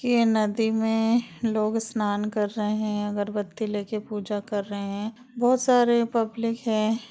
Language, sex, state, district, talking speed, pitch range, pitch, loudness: Hindi, female, Bihar, Vaishali, 160 wpm, 210-230 Hz, 220 Hz, -25 LUFS